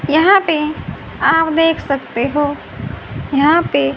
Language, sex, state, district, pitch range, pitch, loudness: Hindi, female, Haryana, Rohtak, 275-325 Hz, 300 Hz, -15 LUFS